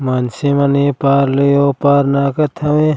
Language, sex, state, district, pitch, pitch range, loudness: Chhattisgarhi, male, Chhattisgarh, Raigarh, 140 Hz, 140-145 Hz, -14 LUFS